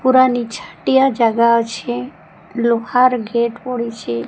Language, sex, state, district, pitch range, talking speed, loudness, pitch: Odia, female, Odisha, Sambalpur, 225-250 Hz, 100 wpm, -17 LUFS, 235 Hz